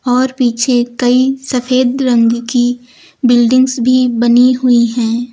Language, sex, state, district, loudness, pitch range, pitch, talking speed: Hindi, female, Uttar Pradesh, Lucknow, -12 LUFS, 240-255 Hz, 245 Hz, 125 wpm